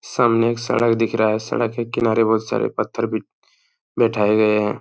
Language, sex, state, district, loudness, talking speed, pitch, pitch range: Hindi, male, Uttar Pradesh, Hamirpur, -19 LUFS, 200 wpm, 115 Hz, 110-115 Hz